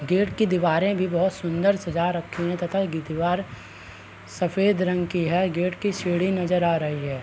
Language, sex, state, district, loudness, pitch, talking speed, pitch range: Hindi, male, Bihar, Araria, -24 LUFS, 175 Hz, 190 wpm, 165-185 Hz